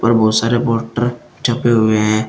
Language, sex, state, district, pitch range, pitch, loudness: Hindi, male, Uttar Pradesh, Shamli, 110-120 Hz, 115 Hz, -16 LUFS